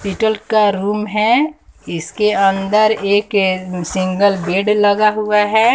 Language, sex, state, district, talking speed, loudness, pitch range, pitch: Hindi, female, Bihar, West Champaran, 115 wpm, -15 LUFS, 195-215 Hz, 205 Hz